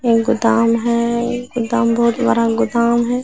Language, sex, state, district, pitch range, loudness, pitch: Hindi, female, Bihar, Katihar, 230-235 Hz, -16 LUFS, 235 Hz